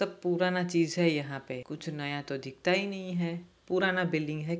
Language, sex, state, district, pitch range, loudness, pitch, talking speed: Hindi, male, Jharkhand, Jamtara, 150-180 Hz, -31 LUFS, 170 Hz, 195 wpm